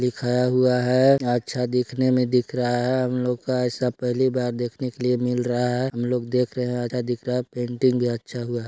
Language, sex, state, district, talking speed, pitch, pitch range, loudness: Hindi, male, Chhattisgarh, Balrampur, 235 wpm, 125 Hz, 120-125 Hz, -23 LUFS